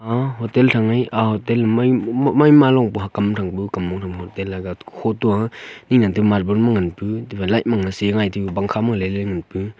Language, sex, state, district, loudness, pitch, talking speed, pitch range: Wancho, male, Arunachal Pradesh, Longding, -18 LUFS, 105 Hz, 200 wpm, 100-115 Hz